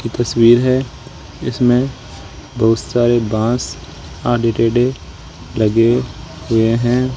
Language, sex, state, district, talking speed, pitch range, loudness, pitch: Hindi, male, Rajasthan, Jaipur, 100 wpm, 110-125 Hz, -15 LUFS, 120 Hz